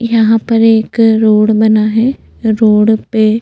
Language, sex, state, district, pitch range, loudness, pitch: Hindi, female, Chhattisgarh, Jashpur, 215-225 Hz, -10 LUFS, 220 Hz